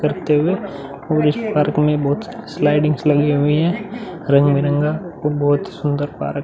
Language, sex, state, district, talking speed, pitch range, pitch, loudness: Hindi, male, Bihar, Vaishali, 175 wpm, 145-165 Hz, 150 Hz, -18 LUFS